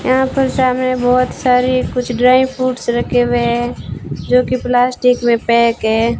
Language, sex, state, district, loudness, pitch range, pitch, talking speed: Hindi, female, Rajasthan, Bikaner, -14 LUFS, 240-255 Hz, 250 Hz, 165 wpm